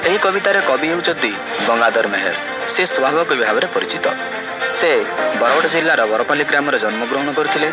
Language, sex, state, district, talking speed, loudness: Odia, male, Odisha, Malkangiri, 140 wpm, -16 LUFS